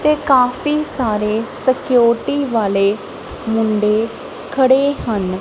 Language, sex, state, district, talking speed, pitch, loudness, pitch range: Punjabi, female, Punjab, Kapurthala, 90 wpm, 235 Hz, -16 LUFS, 215-265 Hz